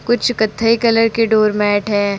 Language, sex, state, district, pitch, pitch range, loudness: Hindi, female, Bihar, Vaishali, 220 Hz, 205-230 Hz, -15 LUFS